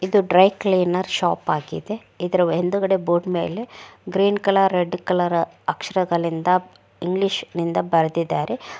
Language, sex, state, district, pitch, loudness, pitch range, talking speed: Kannada, female, Karnataka, Mysore, 180 Hz, -21 LUFS, 170-195 Hz, 110 wpm